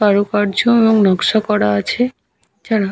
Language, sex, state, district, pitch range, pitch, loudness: Bengali, female, West Bengal, Paschim Medinipur, 200-225 Hz, 210 Hz, -15 LUFS